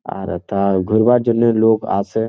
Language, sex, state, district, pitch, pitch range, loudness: Bengali, male, West Bengal, Jhargram, 110 Hz, 100-115 Hz, -16 LUFS